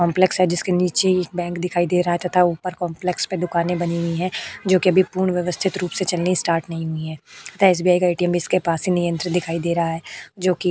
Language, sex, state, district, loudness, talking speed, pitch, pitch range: Hindi, female, Uttar Pradesh, Budaun, -20 LUFS, 230 wpm, 180 Hz, 170-185 Hz